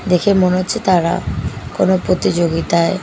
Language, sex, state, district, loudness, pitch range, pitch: Bengali, female, Bihar, Katihar, -16 LUFS, 165-185 Hz, 180 Hz